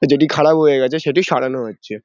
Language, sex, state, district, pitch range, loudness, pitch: Bengali, male, West Bengal, Dakshin Dinajpur, 130-155 Hz, -15 LUFS, 145 Hz